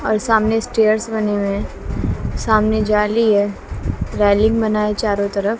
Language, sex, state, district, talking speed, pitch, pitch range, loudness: Hindi, female, Bihar, West Champaran, 150 wpm, 215 Hz, 205-220 Hz, -18 LUFS